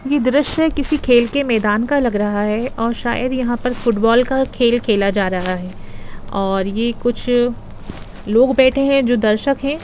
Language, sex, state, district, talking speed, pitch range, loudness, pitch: Hindi, female, Jharkhand, Jamtara, 185 wpm, 215-265 Hz, -17 LUFS, 240 Hz